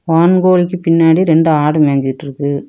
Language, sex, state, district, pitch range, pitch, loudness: Tamil, female, Tamil Nadu, Kanyakumari, 145-175 Hz, 160 Hz, -12 LUFS